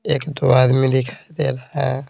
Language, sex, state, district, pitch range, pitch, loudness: Hindi, male, Bihar, Patna, 130-145 Hz, 135 Hz, -18 LUFS